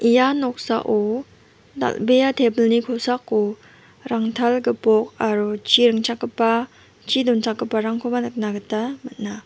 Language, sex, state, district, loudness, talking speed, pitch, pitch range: Garo, female, Meghalaya, West Garo Hills, -20 LUFS, 95 wpm, 235 Hz, 220-245 Hz